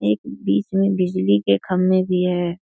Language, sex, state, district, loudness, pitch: Hindi, female, Bihar, Darbhanga, -19 LUFS, 180 Hz